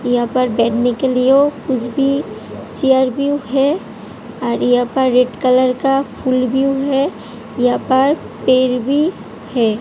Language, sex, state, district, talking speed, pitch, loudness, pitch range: Hindi, female, Uttar Pradesh, Hamirpur, 155 wpm, 255 Hz, -16 LUFS, 245-270 Hz